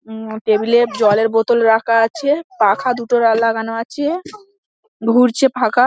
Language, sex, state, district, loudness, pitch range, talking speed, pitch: Bengali, female, West Bengal, Dakshin Dinajpur, -16 LUFS, 225-270 Hz, 135 wpm, 235 Hz